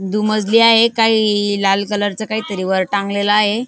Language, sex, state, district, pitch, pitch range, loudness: Marathi, female, Maharashtra, Dhule, 210 Hz, 200-220 Hz, -15 LUFS